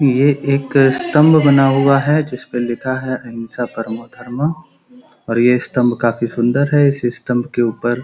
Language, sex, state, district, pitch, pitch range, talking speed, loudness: Hindi, male, Uttar Pradesh, Gorakhpur, 125 Hz, 120-140 Hz, 170 wpm, -15 LUFS